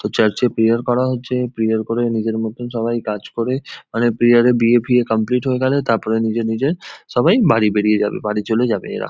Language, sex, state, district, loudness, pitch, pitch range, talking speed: Bengali, male, West Bengal, Jhargram, -18 LUFS, 115 Hz, 110-125 Hz, 200 wpm